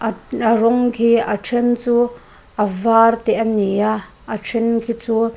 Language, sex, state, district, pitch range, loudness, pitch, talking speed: Mizo, female, Mizoram, Aizawl, 220-235 Hz, -17 LUFS, 230 Hz, 180 wpm